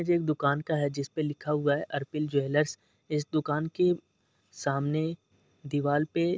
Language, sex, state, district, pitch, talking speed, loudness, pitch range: Hindi, male, Uttar Pradesh, Jalaun, 150 Hz, 180 wpm, -29 LUFS, 140-155 Hz